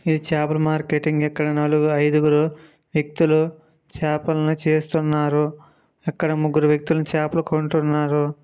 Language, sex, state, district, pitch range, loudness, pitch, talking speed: Telugu, male, Andhra Pradesh, Srikakulam, 150-155 Hz, -21 LUFS, 155 Hz, 85 wpm